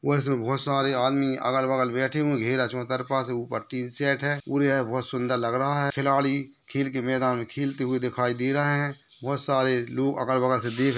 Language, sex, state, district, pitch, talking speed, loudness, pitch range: Hindi, male, Maharashtra, Nagpur, 135 Hz, 160 wpm, -25 LUFS, 125-140 Hz